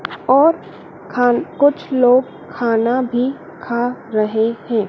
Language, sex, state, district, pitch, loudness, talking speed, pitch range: Hindi, female, Madhya Pradesh, Dhar, 245 Hz, -17 LUFS, 110 wpm, 230-260 Hz